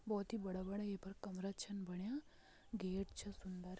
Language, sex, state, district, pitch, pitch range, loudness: Garhwali, female, Uttarakhand, Tehri Garhwal, 195 Hz, 185-205 Hz, -47 LUFS